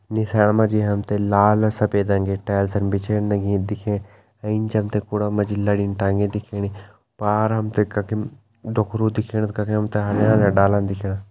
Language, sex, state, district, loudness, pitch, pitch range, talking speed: Hindi, male, Uttarakhand, Tehri Garhwal, -21 LUFS, 105 Hz, 100-110 Hz, 170 wpm